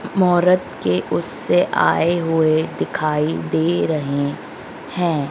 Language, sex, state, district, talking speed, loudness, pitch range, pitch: Hindi, female, Madhya Pradesh, Dhar, 100 wpm, -19 LUFS, 145-175 Hz, 160 Hz